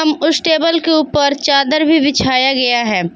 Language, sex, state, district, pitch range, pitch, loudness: Hindi, female, Jharkhand, Palamu, 265-315 Hz, 290 Hz, -13 LUFS